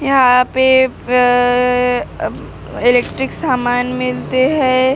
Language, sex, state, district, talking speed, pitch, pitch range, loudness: Hindi, female, Maharashtra, Gondia, 95 wpm, 250 Hz, 245-260 Hz, -14 LUFS